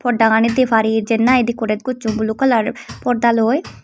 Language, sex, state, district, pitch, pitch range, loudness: Chakma, female, Tripura, Dhalai, 230 Hz, 220-250 Hz, -16 LUFS